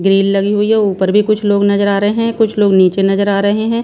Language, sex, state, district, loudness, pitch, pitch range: Hindi, female, Bihar, Patna, -13 LUFS, 205 Hz, 195-215 Hz